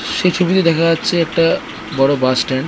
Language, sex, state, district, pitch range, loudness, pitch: Bengali, female, West Bengal, North 24 Parganas, 135-175 Hz, -15 LUFS, 165 Hz